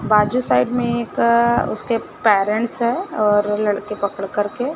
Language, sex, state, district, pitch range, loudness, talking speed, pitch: Hindi, female, Maharashtra, Gondia, 205-235 Hz, -19 LUFS, 140 wpm, 215 Hz